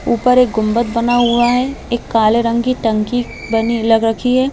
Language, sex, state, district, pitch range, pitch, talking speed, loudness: Hindi, female, Chhattisgarh, Bilaspur, 225-245 Hz, 235 Hz, 200 wpm, -15 LUFS